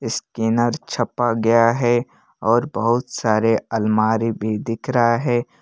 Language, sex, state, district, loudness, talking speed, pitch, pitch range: Hindi, male, Jharkhand, Palamu, -19 LUFS, 130 wpm, 115 Hz, 110-120 Hz